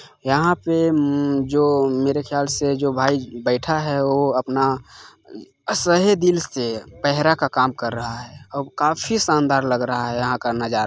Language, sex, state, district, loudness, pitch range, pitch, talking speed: Hindi, male, Chhattisgarh, Balrampur, -20 LUFS, 125-150 Hz, 140 Hz, 170 wpm